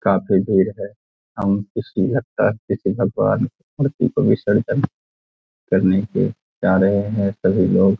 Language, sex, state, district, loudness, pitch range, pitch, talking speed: Hindi, male, Bihar, Araria, -19 LUFS, 95-110 Hz, 100 Hz, 135 wpm